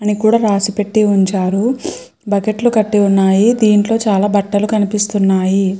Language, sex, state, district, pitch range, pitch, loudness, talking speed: Telugu, female, Andhra Pradesh, Chittoor, 195-215 Hz, 205 Hz, -14 LUFS, 135 wpm